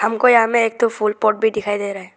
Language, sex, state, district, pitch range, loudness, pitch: Hindi, male, Arunachal Pradesh, Lower Dibang Valley, 205-230 Hz, -17 LUFS, 215 Hz